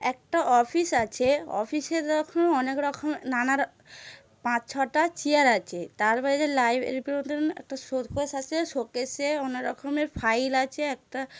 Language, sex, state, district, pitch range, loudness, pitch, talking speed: Bengali, female, West Bengal, Paschim Medinipur, 250-300 Hz, -26 LUFS, 270 Hz, 120 wpm